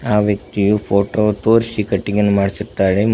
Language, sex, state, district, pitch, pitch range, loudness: Kannada, male, Karnataka, Koppal, 105 Hz, 100-105 Hz, -17 LUFS